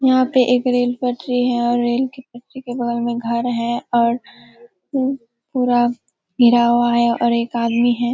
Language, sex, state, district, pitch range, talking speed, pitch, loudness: Hindi, female, Bihar, Kishanganj, 235-250 Hz, 185 wpm, 240 Hz, -18 LUFS